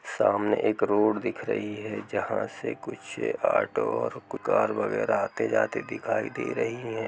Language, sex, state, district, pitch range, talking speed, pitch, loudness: Hindi, male, Uttar Pradesh, Jalaun, 105-115 Hz, 160 wpm, 105 Hz, -28 LUFS